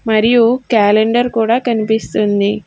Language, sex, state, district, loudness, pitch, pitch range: Telugu, female, Telangana, Hyderabad, -13 LUFS, 225 Hz, 215-235 Hz